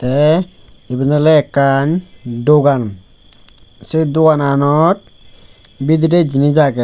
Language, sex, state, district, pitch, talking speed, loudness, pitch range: Chakma, male, Tripura, West Tripura, 145 Hz, 90 wpm, -13 LUFS, 125-155 Hz